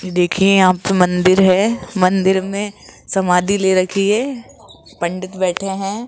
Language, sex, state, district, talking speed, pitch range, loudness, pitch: Hindi, female, Rajasthan, Jaipur, 140 wpm, 185-200 Hz, -16 LUFS, 190 Hz